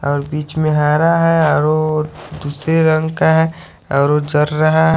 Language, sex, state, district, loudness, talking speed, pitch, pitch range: Hindi, male, Haryana, Charkhi Dadri, -15 LUFS, 195 wpm, 155 Hz, 150-160 Hz